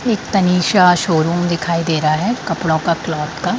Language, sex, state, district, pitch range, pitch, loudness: Hindi, female, Bihar, Sitamarhi, 160-185 Hz, 170 Hz, -16 LUFS